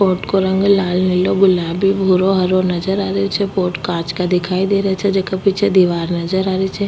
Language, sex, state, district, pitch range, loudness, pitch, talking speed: Rajasthani, female, Rajasthan, Nagaur, 180-195 Hz, -16 LUFS, 190 Hz, 225 wpm